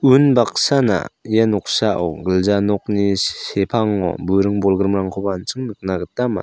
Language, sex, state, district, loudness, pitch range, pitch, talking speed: Garo, male, Meghalaya, South Garo Hills, -18 LUFS, 95-110 Hz, 100 Hz, 110 wpm